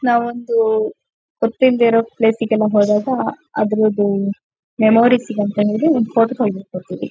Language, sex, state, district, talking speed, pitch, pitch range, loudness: Kannada, female, Karnataka, Shimoga, 120 wpm, 225 Hz, 210-245 Hz, -17 LUFS